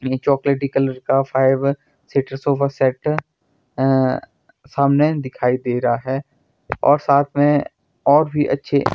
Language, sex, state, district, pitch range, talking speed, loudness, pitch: Hindi, male, Himachal Pradesh, Shimla, 130-145 Hz, 125 wpm, -18 LUFS, 140 Hz